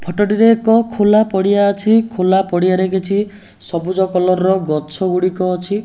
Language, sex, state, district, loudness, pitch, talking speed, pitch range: Odia, male, Odisha, Nuapada, -15 LUFS, 190 Hz, 165 wpm, 185-205 Hz